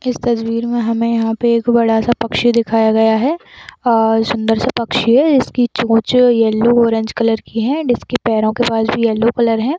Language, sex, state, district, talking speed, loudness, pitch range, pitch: Hindi, female, Jharkhand, Sahebganj, 200 wpm, -14 LUFS, 225-240 Hz, 230 Hz